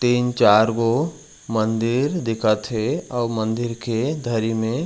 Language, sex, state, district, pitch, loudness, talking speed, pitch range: Chhattisgarhi, male, Chhattisgarh, Raigarh, 115 Hz, -21 LUFS, 135 wpm, 110-125 Hz